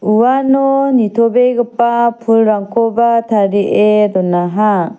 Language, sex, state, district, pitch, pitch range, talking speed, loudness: Garo, female, Meghalaya, South Garo Hills, 230 Hz, 210-240 Hz, 60 wpm, -12 LUFS